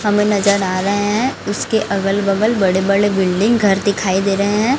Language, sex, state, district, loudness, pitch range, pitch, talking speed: Hindi, female, Chhattisgarh, Raipur, -16 LUFS, 195-210 Hz, 200 Hz, 200 wpm